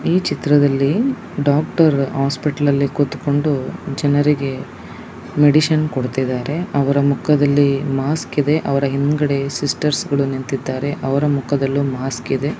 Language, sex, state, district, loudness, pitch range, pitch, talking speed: Kannada, male, Karnataka, Dakshina Kannada, -18 LUFS, 135-150 Hz, 140 Hz, 95 wpm